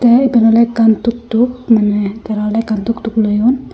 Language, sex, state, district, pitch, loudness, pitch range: Chakma, female, Tripura, Unakoti, 225 Hz, -13 LUFS, 215-235 Hz